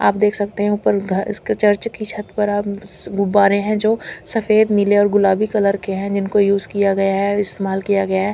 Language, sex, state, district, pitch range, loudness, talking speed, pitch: Hindi, female, Chandigarh, Chandigarh, 195-210 Hz, -17 LUFS, 230 wpm, 205 Hz